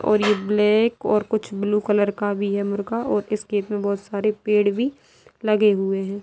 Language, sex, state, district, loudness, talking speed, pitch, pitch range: Hindi, female, Bihar, Jamui, -22 LUFS, 210 wpm, 210 Hz, 200-215 Hz